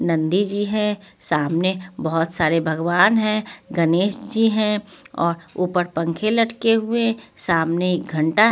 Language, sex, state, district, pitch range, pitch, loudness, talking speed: Hindi, female, Punjab, Pathankot, 165-215 Hz, 185 Hz, -20 LUFS, 125 wpm